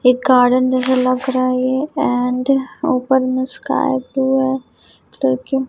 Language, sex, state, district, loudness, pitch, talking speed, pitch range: Hindi, female, Chhattisgarh, Raipur, -17 LUFS, 260 Hz, 150 wpm, 255-265 Hz